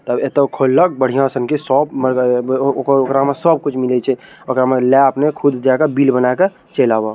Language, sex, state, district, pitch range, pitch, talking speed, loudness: Maithili, male, Bihar, Araria, 130-140 Hz, 135 Hz, 220 wpm, -15 LUFS